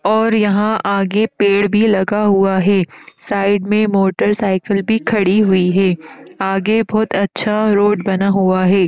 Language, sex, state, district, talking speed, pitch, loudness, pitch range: Hindi, female, Uttar Pradesh, Etah, 150 wpm, 200 Hz, -15 LUFS, 195-210 Hz